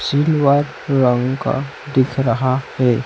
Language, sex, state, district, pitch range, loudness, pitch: Hindi, male, Chhattisgarh, Raipur, 130-140 Hz, -17 LUFS, 135 Hz